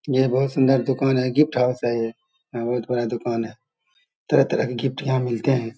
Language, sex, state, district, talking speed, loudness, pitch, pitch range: Hindi, male, Bihar, Saharsa, 220 wpm, -22 LUFS, 125 Hz, 120-135 Hz